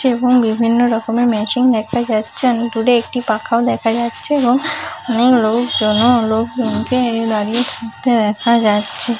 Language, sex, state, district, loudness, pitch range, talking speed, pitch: Bengali, female, West Bengal, Paschim Medinipur, -15 LUFS, 225-245 Hz, 130 wpm, 235 Hz